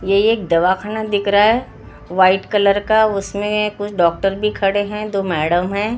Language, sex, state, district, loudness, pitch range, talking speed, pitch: Hindi, female, Maharashtra, Gondia, -17 LUFS, 190-210 Hz, 190 wpm, 205 Hz